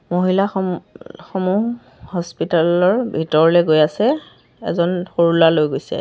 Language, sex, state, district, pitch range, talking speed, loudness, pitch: Assamese, female, Assam, Sonitpur, 165-190 Hz, 130 wpm, -17 LUFS, 175 Hz